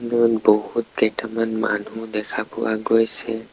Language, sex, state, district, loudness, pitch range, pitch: Assamese, male, Assam, Sonitpur, -20 LUFS, 110-115 Hz, 115 Hz